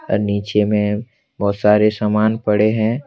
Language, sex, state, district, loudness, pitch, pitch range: Hindi, male, Jharkhand, Deoghar, -17 LUFS, 105 Hz, 105-110 Hz